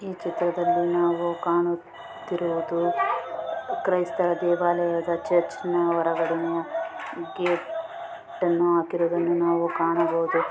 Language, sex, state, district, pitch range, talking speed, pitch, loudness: Kannada, female, Karnataka, Mysore, 170-180 Hz, 75 wpm, 175 Hz, -25 LUFS